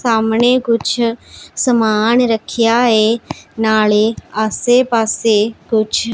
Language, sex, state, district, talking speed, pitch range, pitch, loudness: Punjabi, female, Punjab, Pathankot, 90 wpm, 220-235 Hz, 230 Hz, -14 LUFS